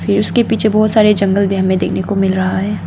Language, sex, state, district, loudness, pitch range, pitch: Hindi, female, Arunachal Pradesh, Papum Pare, -13 LUFS, 190-215 Hz, 200 Hz